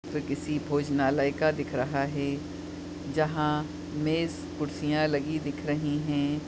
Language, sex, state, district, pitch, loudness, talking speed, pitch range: Hindi, female, Goa, North and South Goa, 150 Hz, -29 LUFS, 130 wpm, 145-150 Hz